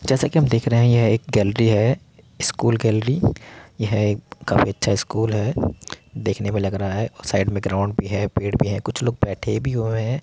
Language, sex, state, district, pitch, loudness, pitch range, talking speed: Hindi, male, Uttar Pradesh, Muzaffarnagar, 110 Hz, -21 LUFS, 100-120 Hz, 240 wpm